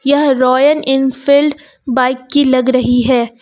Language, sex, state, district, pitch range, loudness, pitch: Hindi, female, Uttar Pradesh, Lucknow, 255-285 Hz, -12 LUFS, 265 Hz